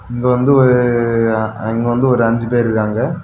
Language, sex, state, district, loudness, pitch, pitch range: Tamil, male, Tamil Nadu, Kanyakumari, -14 LUFS, 120 Hz, 115-125 Hz